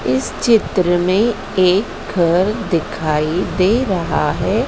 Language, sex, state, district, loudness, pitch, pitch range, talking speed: Hindi, female, Madhya Pradesh, Dhar, -16 LUFS, 185 Hz, 170-200 Hz, 115 wpm